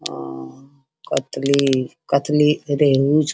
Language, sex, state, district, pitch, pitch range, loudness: Angika, female, Bihar, Bhagalpur, 140 Hz, 135-150 Hz, -19 LUFS